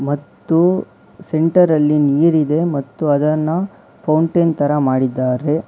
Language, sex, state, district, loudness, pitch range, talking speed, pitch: Kannada, male, Karnataka, Bangalore, -16 LUFS, 145-165 Hz, 95 wpm, 155 Hz